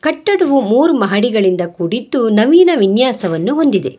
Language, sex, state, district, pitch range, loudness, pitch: Kannada, female, Karnataka, Bangalore, 190-305 Hz, -13 LUFS, 235 Hz